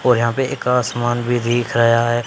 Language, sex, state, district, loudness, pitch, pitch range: Hindi, male, Haryana, Charkhi Dadri, -17 LUFS, 120 Hz, 120-125 Hz